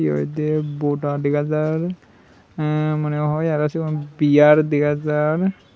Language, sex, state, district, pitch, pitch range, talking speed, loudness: Chakma, male, Tripura, Unakoti, 150 Hz, 145-155 Hz, 125 wpm, -20 LUFS